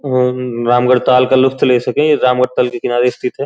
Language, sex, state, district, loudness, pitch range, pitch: Hindi, male, Uttar Pradesh, Gorakhpur, -13 LUFS, 125-130 Hz, 125 Hz